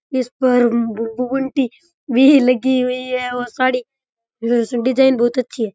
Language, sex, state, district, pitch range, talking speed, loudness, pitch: Rajasthani, male, Rajasthan, Churu, 240-260 Hz, 135 wpm, -17 LUFS, 250 Hz